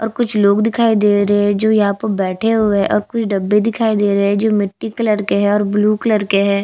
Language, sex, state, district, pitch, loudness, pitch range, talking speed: Hindi, female, Chhattisgarh, Jashpur, 210 Hz, -15 LUFS, 200-220 Hz, 270 wpm